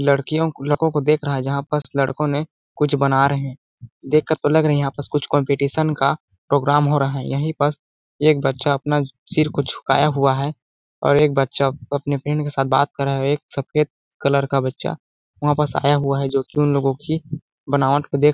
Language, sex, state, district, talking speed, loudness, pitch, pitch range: Hindi, male, Chhattisgarh, Balrampur, 215 wpm, -20 LUFS, 140 Hz, 135-150 Hz